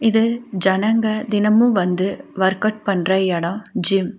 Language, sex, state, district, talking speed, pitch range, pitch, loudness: Tamil, female, Tamil Nadu, Nilgiris, 145 wpm, 190-220 Hz, 200 Hz, -18 LUFS